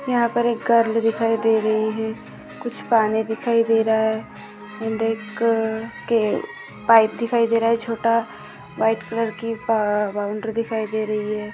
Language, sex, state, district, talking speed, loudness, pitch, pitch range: Hindi, female, Maharashtra, Aurangabad, 160 wpm, -21 LUFS, 225 Hz, 215-230 Hz